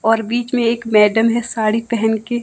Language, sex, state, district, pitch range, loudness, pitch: Hindi, male, Himachal Pradesh, Shimla, 220-235 Hz, -16 LUFS, 230 Hz